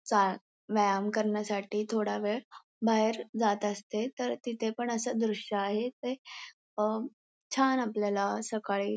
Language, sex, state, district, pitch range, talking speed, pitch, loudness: Marathi, female, Maharashtra, Pune, 205-240 Hz, 125 wpm, 220 Hz, -31 LUFS